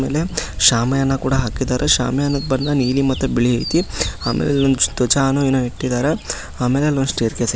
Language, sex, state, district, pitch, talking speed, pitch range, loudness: Kannada, male, Karnataka, Dharwad, 135 Hz, 160 wpm, 125-140 Hz, -18 LUFS